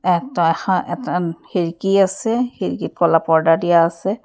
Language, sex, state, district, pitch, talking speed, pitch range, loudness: Assamese, female, Assam, Kamrup Metropolitan, 175 Hz, 140 wpm, 165-195 Hz, -18 LUFS